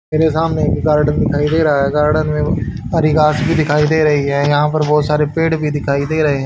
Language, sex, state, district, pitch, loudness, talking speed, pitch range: Hindi, male, Haryana, Charkhi Dadri, 150 Hz, -15 LUFS, 250 wpm, 150-155 Hz